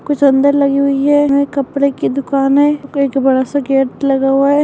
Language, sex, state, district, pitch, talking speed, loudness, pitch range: Hindi, female, Bihar, Madhepura, 280 Hz, 220 wpm, -13 LUFS, 270-285 Hz